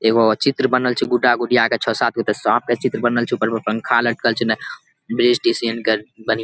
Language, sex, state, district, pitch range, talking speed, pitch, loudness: Maithili, male, Bihar, Saharsa, 115-120 Hz, 250 wpm, 120 Hz, -18 LUFS